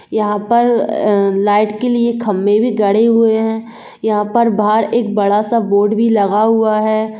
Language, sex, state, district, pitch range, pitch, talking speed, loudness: Hindi, female, Jharkhand, Jamtara, 210-230 Hz, 215 Hz, 185 wpm, -14 LUFS